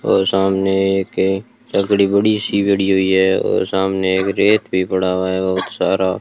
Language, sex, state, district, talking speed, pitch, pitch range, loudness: Hindi, male, Rajasthan, Bikaner, 195 wpm, 95 Hz, 95-100 Hz, -16 LUFS